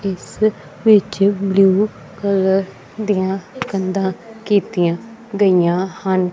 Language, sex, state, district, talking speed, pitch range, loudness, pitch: Punjabi, female, Punjab, Kapurthala, 85 wpm, 185-210 Hz, -17 LUFS, 195 Hz